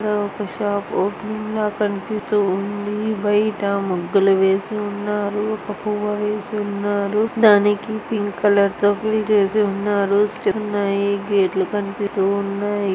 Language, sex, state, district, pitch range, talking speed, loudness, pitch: Telugu, female, Andhra Pradesh, Anantapur, 200-210 Hz, 125 wpm, -20 LUFS, 205 Hz